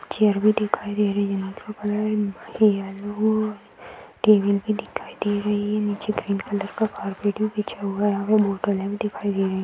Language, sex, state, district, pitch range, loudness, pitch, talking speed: Hindi, female, Uttar Pradesh, Deoria, 200-215 Hz, -23 LUFS, 205 Hz, 160 wpm